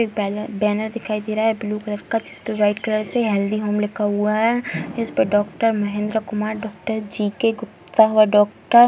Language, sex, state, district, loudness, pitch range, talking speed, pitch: Hindi, female, Bihar, Muzaffarpur, -21 LUFS, 210-225 Hz, 210 wpm, 215 Hz